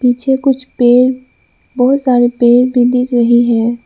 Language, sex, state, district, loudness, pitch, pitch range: Hindi, female, Arunachal Pradesh, Lower Dibang Valley, -11 LUFS, 245 Hz, 240-255 Hz